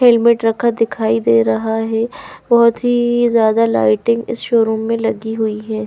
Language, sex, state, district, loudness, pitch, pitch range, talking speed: Hindi, female, Bihar, Katihar, -15 LUFS, 225 Hz, 220-235 Hz, 165 wpm